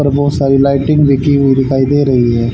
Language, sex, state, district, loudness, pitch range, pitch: Hindi, male, Haryana, Charkhi Dadri, -11 LUFS, 135-145 Hz, 140 Hz